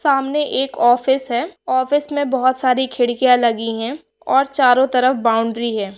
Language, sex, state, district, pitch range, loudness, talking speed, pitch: Hindi, female, Bihar, Bhagalpur, 240-275 Hz, -17 LUFS, 160 wpm, 255 Hz